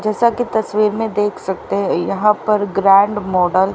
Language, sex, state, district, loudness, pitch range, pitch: Hindi, female, Haryana, Rohtak, -16 LUFS, 195-215 Hz, 210 Hz